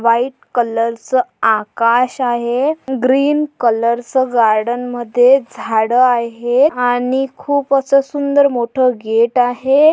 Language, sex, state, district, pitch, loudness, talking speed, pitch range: Marathi, female, Maharashtra, Pune, 245 Hz, -15 LUFS, 110 wpm, 235-270 Hz